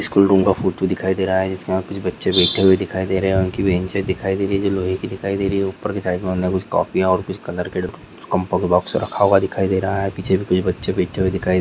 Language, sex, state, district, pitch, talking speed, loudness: Maithili, male, Bihar, Supaul, 95 Hz, 285 wpm, -19 LUFS